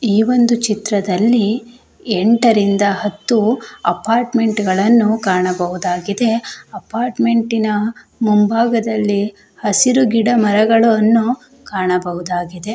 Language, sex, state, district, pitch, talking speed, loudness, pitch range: Kannada, female, Karnataka, Shimoga, 220 Hz, 65 wpm, -15 LUFS, 200-230 Hz